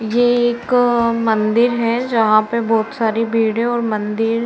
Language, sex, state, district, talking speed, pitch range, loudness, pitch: Hindi, female, Uttar Pradesh, Varanasi, 175 wpm, 220-240 Hz, -16 LUFS, 230 Hz